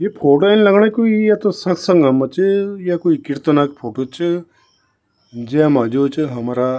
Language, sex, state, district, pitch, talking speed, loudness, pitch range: Garhwali, male, Uttarakhand, Tehri Garhwal, 155 Hz, 185 wpm, -15 LUFS, 130-195 Hz